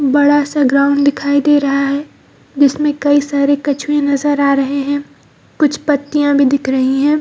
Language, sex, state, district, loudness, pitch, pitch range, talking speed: Hindi, female, Bihar, Jahanabad, -14 LUFS, 285 Hz, 280-290 Hz, 165 wpm